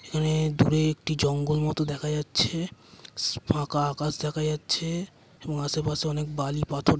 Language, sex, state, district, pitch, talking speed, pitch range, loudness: Bengali, male, West Bengal, Purulia, 150 Hz, 145 wpm, 145-155 Hz, -27 LUFS